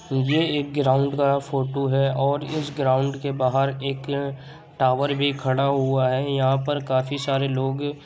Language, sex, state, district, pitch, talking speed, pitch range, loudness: Hindi, male, Uttar Pradesh, Muzaffarnagar, 140 Hz, 180 wpm, 135-140 Hz, -23 LUFS